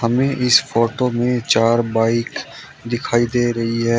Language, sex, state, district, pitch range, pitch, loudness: Hindi, male, Uttar Pradesh, Shamli, 115-125 Hz, 120 Hz, -17 LUFS